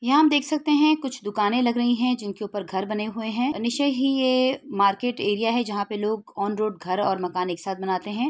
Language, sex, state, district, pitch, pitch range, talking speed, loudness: Hindi, female, Uttar Pradesh, Etah, 220 Hz, 205-260 Hz, 245 wpm, -24 LUFS